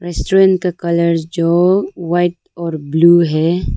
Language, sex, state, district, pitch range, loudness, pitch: Hindi, female, Arunachal Pradesh, Lower Dibang Valley, 165-175 Hz, -14 LUFS, 170 Hz